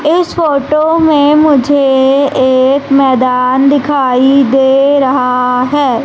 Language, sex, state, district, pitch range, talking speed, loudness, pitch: Hindi, female, Madhya Pradesh, Umaria, 260-290 Hz, 100 wpm, -9 LUFS, 275 Hz